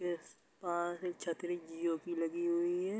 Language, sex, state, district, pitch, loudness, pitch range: Hindi, male, Bihar, Gopalganj, 175 Hz, -38 LUFS, 170-175 Hz